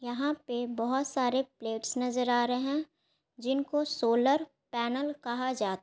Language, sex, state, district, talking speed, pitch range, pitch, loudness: Hindi, female, Bihar, Gaya, 145 wpm, 240-280 Hz, 250 Hz, -31 LUFS